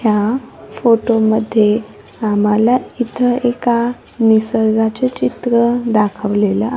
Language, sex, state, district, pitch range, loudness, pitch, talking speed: Marathi, female, Maharashtra, Gondia, 215-240 Hz, -15 LUFS, 225 Hz, 70 wpm